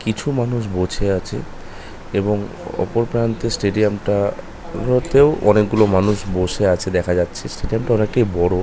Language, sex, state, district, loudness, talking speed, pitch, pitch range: Bengali, male, West Bengal, North 24 Parganas, -19 LUFS, 160 wpm, 105 Hz, 95-115 Hz